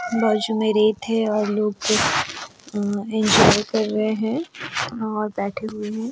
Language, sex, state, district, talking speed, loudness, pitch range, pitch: Hindi, female, Goa, North and South Goa, 125 wpm, -21 LUFS, 210-225 Hz, 215 Hz